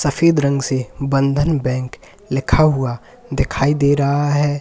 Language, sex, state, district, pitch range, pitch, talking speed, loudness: Hindi, male, Uttar Pradesh, Lalitpur, 130-145 Hz, 140 Hz, 145 wpm, -17 LUFS